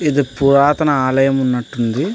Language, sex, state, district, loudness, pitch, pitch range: Telugu, male, Andhra Pradesh, Anantapur, -15 LUFS, 135 Hz, 130-145 Hz